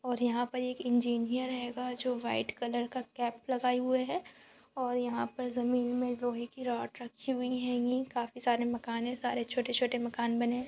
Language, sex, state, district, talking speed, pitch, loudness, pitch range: Hindi, female, Goa, North and South Goa, 180 wpm, 245 Hz, -34 LUFS, 240-250 Hz